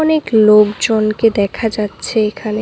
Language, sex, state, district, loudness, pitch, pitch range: Bengali, female, West Bengal, Cooch Behar, -14 LUFS, 215 Hz, 210-225 Hz